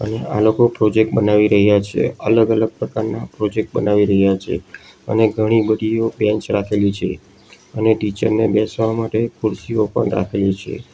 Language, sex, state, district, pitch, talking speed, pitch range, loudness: Gujarati, male, Gujarat, Valsad, 110 Hz, 155 wpm, 105-110 Hz, -17 LUFS